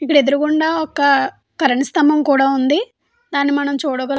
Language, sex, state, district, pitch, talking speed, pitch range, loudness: Telugu, female, Andhra Pradesh, Anantapur, 285 Hz, 155 wpm, 275-305 Hz, -16 LUFS